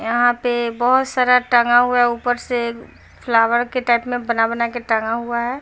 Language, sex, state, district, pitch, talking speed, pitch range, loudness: Hindi, female, Bihar, Patna, 240 Hz, 190 wpm, 235-245 Hz, -18 LUFS